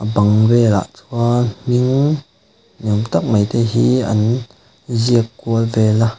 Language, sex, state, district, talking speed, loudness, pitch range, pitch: Mizo, male, Mizoram, Aizawl, 145 wpm, -16 LUFS, 110-120 Hz, 115 Hz